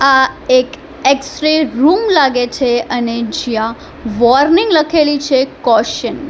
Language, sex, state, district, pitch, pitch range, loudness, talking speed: Gujarati, female, Gujarat, Valsad, 265 Hz, 240-305 Hz, -13 LUFS, 125 wpm